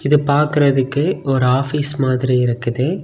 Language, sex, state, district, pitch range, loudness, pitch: Tamil, male, Tamil Nadu, Kanyakumari, 130-145 Hz, -17 LUFS, 135 Hz